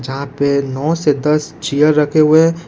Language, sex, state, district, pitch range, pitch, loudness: Hindi, male, Jharkhand, Ranchi, 140-160 Hz, 150 Hz, -14 LUFS